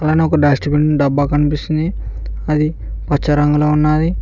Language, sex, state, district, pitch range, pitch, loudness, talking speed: Telugu, male, Telangana, Mahabubabad, 145-155 Hz, 150 Hz, -15 LUFS, 130 wpm